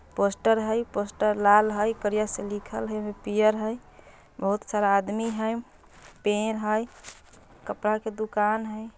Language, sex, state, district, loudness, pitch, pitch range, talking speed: Bajjika, female, Bihar, Vaishali, -26 LUFS, 215 Hz, 210-220 Hz, 145 wpm